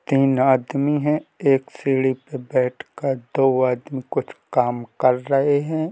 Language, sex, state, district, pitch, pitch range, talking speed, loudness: Hindi, male, Jharkhand, Jamtara, 135 Hz, 130-140 Hz, 140 wpm, -21 LUFS